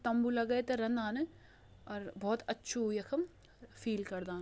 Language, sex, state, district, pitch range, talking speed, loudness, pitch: Hindi, female, Uttarakhand, Uttarkashi, 210-245 Hz, 135 wpm, -37 LUFS, 230 Hz